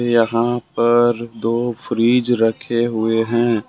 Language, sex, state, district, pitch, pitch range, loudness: Hindi, male, Jharkhand, Ranchi, 120 Hz, 115-120 Hz, -18 LUFS